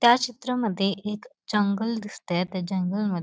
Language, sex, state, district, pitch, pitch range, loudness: Marathi, female, Maharashtra, Dhule, 210 Hz, 190-235 Hz, -26 LUFS